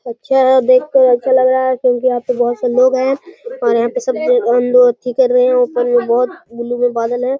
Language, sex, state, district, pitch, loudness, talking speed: Hindi, male, Bihar, Gaya, 255 Hz, -13 LUFS, 220 wpm